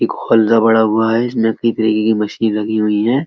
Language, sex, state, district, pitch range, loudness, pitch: Hindi, male, Uttar Pradesh, Etah, 110-115 Hz, -14 LUFS, 110 Hz